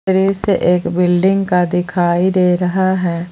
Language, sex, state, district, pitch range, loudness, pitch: Hindi, female, Jharkhand, Palamu, 175-190 Hz, -15 LUFS, 180 Hz